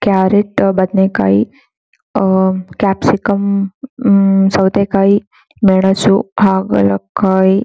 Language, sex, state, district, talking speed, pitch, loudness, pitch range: Kannada, female, Karnataka, Shimoga, 70 wpm, 195 Hz, -13 LUFS, 190-200 Hz